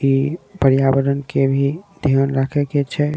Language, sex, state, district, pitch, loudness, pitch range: Maithili, male, Bihar, Saharsa, 140 Hz, -18 LUFS, 135-145 Hz